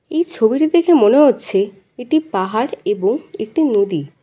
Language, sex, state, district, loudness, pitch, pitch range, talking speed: Bengali, female, West Bengal, Kolkata, -16 LUFS, 255 Hz, 200-335 Hz, 140 wpm